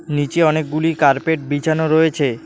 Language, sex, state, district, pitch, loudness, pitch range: Bengali, male, West Bengal, Alipurduar, 155 Hz, -17 LUFS, 145-160 Hz